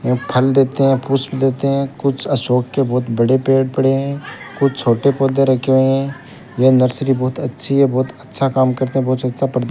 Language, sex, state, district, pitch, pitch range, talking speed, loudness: Hindi, male, Rajasthan, Bikaner, 135 Hz, 130-135 Hz, 210 wpm, -16 LUFS